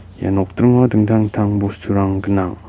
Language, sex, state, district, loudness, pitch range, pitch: Garo, male, Meghalaya, West Garo Hills, -16 LUFS, 95-110 Hz, 100 Hz